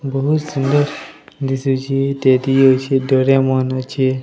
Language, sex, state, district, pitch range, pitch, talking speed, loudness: Odia, male, Odisha, Sambalpur, 130-135 Hz, 135 Hz, 115 wpm, -16 LUFS